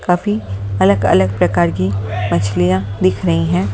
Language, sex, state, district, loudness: Hindi, female, Delhi, New Delhi, -16 LUFS